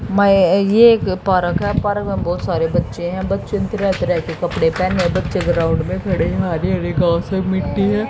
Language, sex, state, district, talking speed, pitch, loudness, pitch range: Hindi, female, Haryana, Jhajjar, 215 wpm, 185 Hz, -17 LUFS, 175-200 Hz